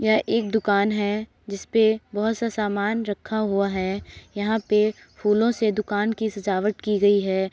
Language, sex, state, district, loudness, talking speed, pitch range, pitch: Hindi, female, Uttar Pradesh, Jalaun, -23 LUFS, 165 wpm, 205-220 Hz, 210 Hz